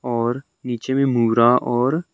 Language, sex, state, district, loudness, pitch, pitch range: Hindi, male, Arunachal Pradesh, Longding, -19 LUFS, 125 Hz, 120-135 Hz